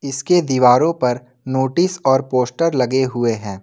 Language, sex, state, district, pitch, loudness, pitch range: Hindi, male, Jharkhand, Ranchi, 130 Hz, -17 LUFS, 125-155 Hz